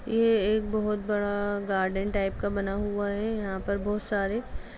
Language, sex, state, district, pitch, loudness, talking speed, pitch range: Hindi, female, Chhattisgarh, Kabirdham, 205 Hz, -28 LUFS, 175 wpm, 200-215 Hz